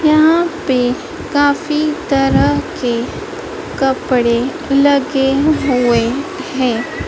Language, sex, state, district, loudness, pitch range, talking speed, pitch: Hindi, female, Madhya Pradesh, Dhar, -15 LUFS, 255-310 Hz, 75 wpm, 280 Hz